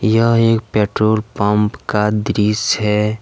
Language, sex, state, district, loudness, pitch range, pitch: Hindi, male, Jharkhand, Deoghar, -16 LUFS, 105-110 Hz, 105 Hz